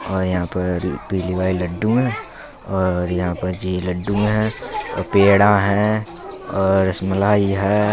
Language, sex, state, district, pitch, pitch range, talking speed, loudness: Bundeli, male, Uttar Pradesh, Budaun, 95 Hz, 90-105 Hz, 145 wpm, -19 LUFS